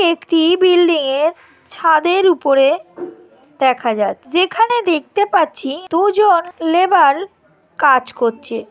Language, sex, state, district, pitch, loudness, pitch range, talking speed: Bengali, female, West Bengal, North 24 Parganas, 330 Hz, -15 LUFS, 275-365 Hz, 105 wpm